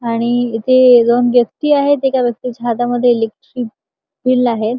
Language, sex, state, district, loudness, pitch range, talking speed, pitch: Marathi, male, Maharashtra, Chandrapur, -14 LUFS, 235-255 Hz, 150 wpm, 245 Hz